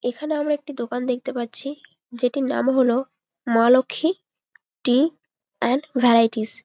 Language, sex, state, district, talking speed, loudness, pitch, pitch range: Bengali, female, West Bengal, Jalpaiguri, 135 wpm, -21 LUFS, 255 Hz, 240-280 Hz